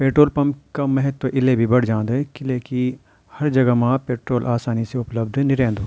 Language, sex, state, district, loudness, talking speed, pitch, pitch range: Garhwali, male, Uttarakhand, Tehri Garhwal, -20 LUFS, 195 wpm, 130 Hz, 120-135 Hz